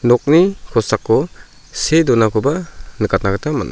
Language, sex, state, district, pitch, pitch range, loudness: Garo, male, Meghalaya, South Garo Hills, 125 Hz, 110-160 Hz, -16 LUFS